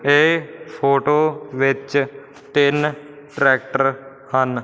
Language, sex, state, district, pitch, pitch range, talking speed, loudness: Punjabi, male, Punjab, Fazilka, 140 Hz, 135-145 Hz, 80 wpm, -19 LUFS